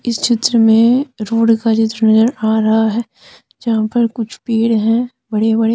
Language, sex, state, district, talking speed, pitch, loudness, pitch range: Hindi, female, Jharkhand, Deoghar, 180 wpm, 225 Hz, -14 LUFS, 220-235 Hz